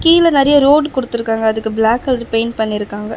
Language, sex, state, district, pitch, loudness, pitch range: Tamil, female, Tamil Nadu, Chennai, 235 Hz, -14 LUFS, 220-280 Hz